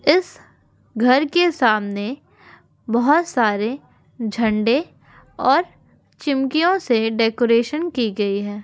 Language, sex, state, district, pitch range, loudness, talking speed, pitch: Hindi, female, Rajasthan, Nagaur, 220-295 Hz, -19 LUFS, 95 wpm, 240 Hz